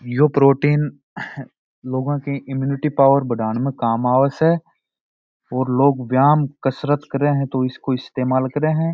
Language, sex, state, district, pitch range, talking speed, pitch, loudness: Marwari, male, Rajasthan, Churu, 130-145 Hz, 150 wpm, 140 Hz, -19 LUFS